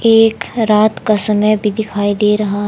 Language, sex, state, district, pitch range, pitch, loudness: Hindi, male, Haryana, Jhajjar, 210-220 Hz, 210 Hz, -14 LUFS